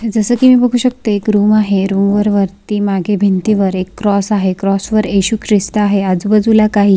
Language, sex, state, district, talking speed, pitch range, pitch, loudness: Marathi, female, Maharashtra, Sindhudurg, 195 wpm, 195-215 Hz, 205 Hz, -13 LUFS